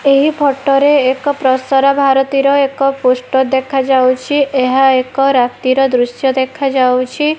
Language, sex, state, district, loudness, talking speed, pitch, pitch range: Odia, female, Odisha, Malkangiri, -12 LUFS, 115 wpm, 270 Hz, 260-275 Hz